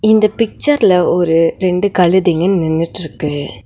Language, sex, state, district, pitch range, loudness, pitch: Tamil, female, Tamil Nadu, Nilgiris, 165-205 Hz, -14 LUFS, 180 Hz